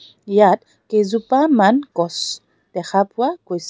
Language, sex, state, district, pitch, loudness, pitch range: Assamese, female, Assam, Kamrup Metropolitan, 210 Hz, -18 LUFS, 190-255 Hz